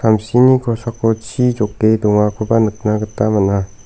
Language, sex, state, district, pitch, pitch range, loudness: Garo, male, Meghalaya, South Garo Hills, 110 Hz, 105-115 Hz, -15 LUFS